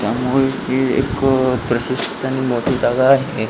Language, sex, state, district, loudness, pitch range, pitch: Marathi, male, Maharashtra, Pune, -17 LUFS, 120-135 Hz, 130 Hz